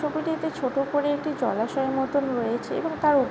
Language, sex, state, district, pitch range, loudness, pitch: Bengali, female, West Bengal, Jhargram, 265-305 Hz, -26 LUFS, 285 Hz